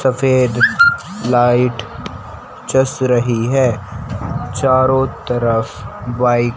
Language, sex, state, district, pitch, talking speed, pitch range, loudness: Hindi, male, Haryana, Charkhi Dadri, 125 Hz, 75 wpm, 120-130 Hz, -15 LUFS